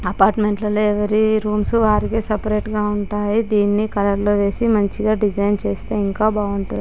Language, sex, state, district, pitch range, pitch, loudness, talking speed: Telugu, female, Andhra Pradesh, Chittoor, 205-215 Hz, 210 Hz, -18 LUFS, 150 wpm